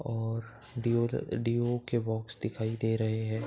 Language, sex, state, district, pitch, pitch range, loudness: Hindi, male, Uttar Pradesh, Budaun, 115 Hz, 110-120 Hz, -32 LUFS